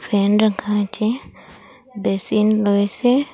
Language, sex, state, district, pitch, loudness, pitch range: Bengali, female, Assam, Hailakandi, 210 Hz, -19 LUFS, 205-235 Hz